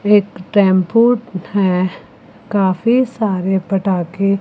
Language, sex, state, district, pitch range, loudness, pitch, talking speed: Hindi, female, Chandigarh, Chandigarh, 185-215 Hz, -16 LUFS, 195 Hz, 80 wpm